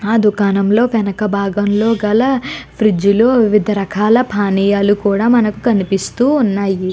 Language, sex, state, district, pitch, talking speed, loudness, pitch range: Telugu, female, Andhra Pradesh, Guntur, 210 Hz, 115 wpm, -14 LUFS, 200-225 Hz